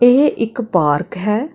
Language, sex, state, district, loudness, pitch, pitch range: Punjabi, female, Karnataka, Bangalore, -16 LUFS, 225 Hz, 180-245 Hz